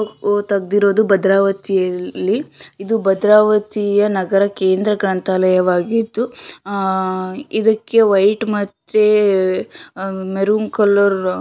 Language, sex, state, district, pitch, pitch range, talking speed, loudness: Kannada, female, Karnataka, Shimoga, 200 Hz, 190-210 Hz, 70 wpm, -16 LUFS